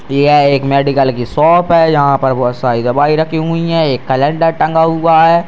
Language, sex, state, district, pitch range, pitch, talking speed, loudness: Hindi, male, Bihar, Purnia, 135-165 Hz, 145 Hz, 210 wpm, -11 LUFS